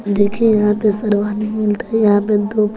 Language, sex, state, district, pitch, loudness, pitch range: Hindi, female, Bihar, West Champaran, 210 Hz, -16 LUFS, 205-215 Hz